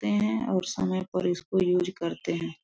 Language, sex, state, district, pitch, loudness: Hindi, female, Jharkhand, Sahebganj, 175 Hz, -28 LUFS